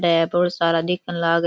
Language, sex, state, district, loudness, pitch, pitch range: Rajasthani, female, Rajasthan, Churu, -20 LUFS, 170 Hz, 165-175 Hz